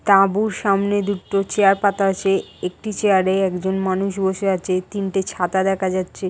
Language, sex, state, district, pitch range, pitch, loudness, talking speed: Bengali, female, West Bengal, Paschim Medinipur, 190-200 Hz, 195 Hz, -20 LUFS, 160 wpm